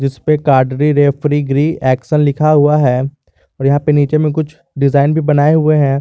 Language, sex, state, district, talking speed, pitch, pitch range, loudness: Hindi, male, Jharkhand, Garhwa, 190 wpm, 145 Hz, 140-150 Hz, -13 LUFS